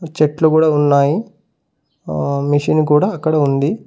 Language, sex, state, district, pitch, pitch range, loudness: Telugu, male, Telangana, Mahabubabad, 150 Hz, 140-155 Hz, -15 LUFS